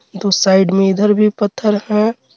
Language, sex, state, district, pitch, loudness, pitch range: Hindi, male, Jharkhand, Garhwa, 205 Hz, -14 LUFS, 195-210 Hz